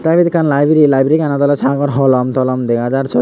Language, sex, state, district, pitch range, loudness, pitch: Chakma, male, Tripura, Unakoti, 130-150 Hz, -13 LUFS, 140 Hz